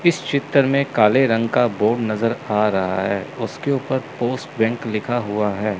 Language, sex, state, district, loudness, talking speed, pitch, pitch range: Hindi, male, Chandigarh, Chandigarh, -20 LUFS, 185 wpm, 120 Hz, 105-135 Hz